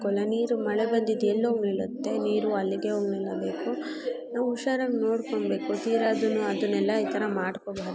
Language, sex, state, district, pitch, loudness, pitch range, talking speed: Kannada, male, Karnataka, Mysore, 220 Hz, -27 LUFS, 205-235 Hz, 145 wpm